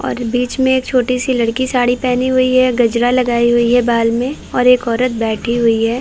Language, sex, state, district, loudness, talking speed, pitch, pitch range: Hindi, female, Chhattisgarh, Bilaspur, -14 LUFS, 240 wpm, 245 Hz, 235-255 Hz